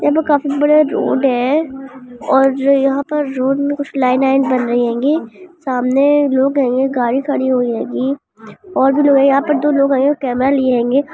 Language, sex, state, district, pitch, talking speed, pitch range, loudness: Hindi, female, Chhattisgarh, Jashpur, 275 Hz, 195 wpm, 255-285 Hz, -15 LUFS